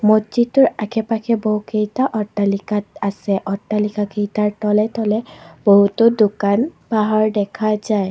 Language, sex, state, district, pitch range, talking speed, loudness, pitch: Assamese, female, Assam, Kamrup Metropolitan, 205-220 Hz, 90 wpm, -18 LUFS, 210 Hz